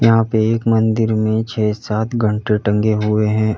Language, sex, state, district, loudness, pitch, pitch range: Hindi, male, Uttar Pradesh, Lalitpur, -17 LUFS, 110 Hz, 105-115 Hz